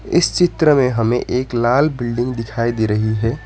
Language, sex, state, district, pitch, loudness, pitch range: Hindi, male, West Bengal, Alipurduar, 120 Hz, -17 LUFS, 115-140 Hz